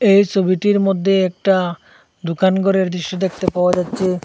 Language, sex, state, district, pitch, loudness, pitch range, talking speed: Bengali, male, Assam, Hailakandi, 190 Hz, -17 LUFS, 180-195 Hz, 140 wpm